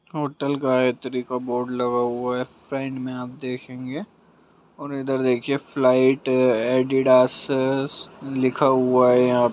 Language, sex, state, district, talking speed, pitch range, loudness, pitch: Hindi, male, Bihar, Lakhisarai, 125 wpm, 125-135 Hz, -22 LUFS, 130 Hz